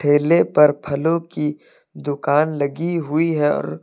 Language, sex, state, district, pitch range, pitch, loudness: Hindi, male, Uttar Pradesh, Lucknow, 145-165 Hz, 150 Hz, -19 LUFS